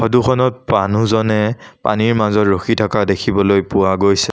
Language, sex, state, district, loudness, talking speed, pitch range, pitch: Assamese, male, Assam, Sonitpur, -15 LUFS, 140 wpm, 100-115 Hz, 105 Hz